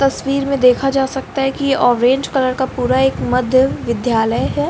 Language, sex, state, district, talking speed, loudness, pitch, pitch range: Hindi, female, Bihar, Lakhisarai, 190 wpm, -16 LUFS, 265 Hz, 250-270 Hz